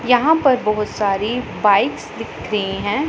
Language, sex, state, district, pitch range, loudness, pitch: Hindi, female, Punjab, Pathankot, 205-260 Hz, -18 LUFS, 215 Hz